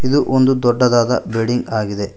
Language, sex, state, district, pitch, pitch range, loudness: Kannada, male, Karnataka, Koppal, 120 Hz, 115-130 Hz, -16 LUFS